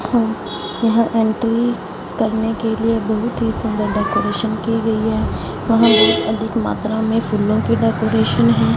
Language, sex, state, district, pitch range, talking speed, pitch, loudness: Hindi, female, Punjab, Fazilka, 210-225 Hz, 130 wpm, 220 Hz, -17 LUFS